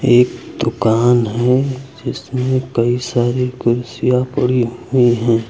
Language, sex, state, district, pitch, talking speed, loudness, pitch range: Hindi, male, Uttar Pradesh, Lucknow, 125 Hz, 110 wpm, -16 LUFS, 120-125 Hz